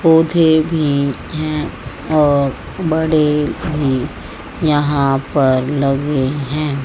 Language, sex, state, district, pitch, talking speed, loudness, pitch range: Hindi, female, Haryana, Jhajjar, 145 Hz, 85 wpm, -16 LUFS, 140-155 Hz